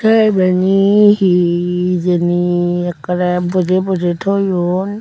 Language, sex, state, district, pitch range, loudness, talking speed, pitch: Chakma, female, Tripura, Unakoti, 175-195 Hz, -14 LUFS, 95 wpm, 180 Hz